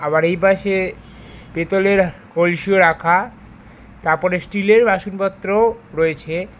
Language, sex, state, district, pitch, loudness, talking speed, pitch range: Bengali, male, West Bengal, Alipurduar, 190 Hz, -17 LUFS, 90 wpm, 165-195 Hz